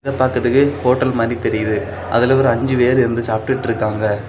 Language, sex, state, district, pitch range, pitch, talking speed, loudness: Tamil, male, Tamil Nadu, Kanyakumari, 110-130 Hz, 120 Hz, 170 wpm, -17 LUFS